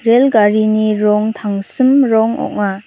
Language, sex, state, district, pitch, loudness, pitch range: Garo, female, Meghalaya, North Garo Hills, 215 Hz, -13 LUFS, 210-230 Hz